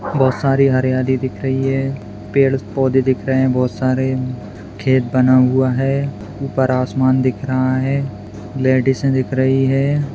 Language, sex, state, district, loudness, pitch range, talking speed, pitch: Hindi, male, Bihar, Madhepura, -17 LUFS, 130-135 Hz, 155 wpm, 130 Hz